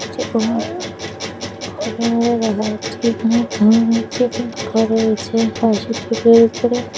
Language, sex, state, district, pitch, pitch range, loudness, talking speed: Bengali, female, West Bengal, North 24 Parganas, 225 Hz, 215-235 Hz, -17 LUFS, 70 wpm